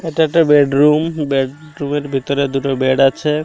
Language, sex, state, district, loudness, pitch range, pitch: Bengali, male, Odisha, Malkangiri, -15 LUFS, 135-155 Hz, 145 Hz